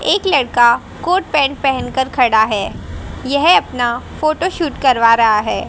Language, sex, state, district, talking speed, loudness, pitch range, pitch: Hindi, female, Haryana, Jhajjar, 160 wpm, -14 LUFS, 235-310 Hz, 265 Hz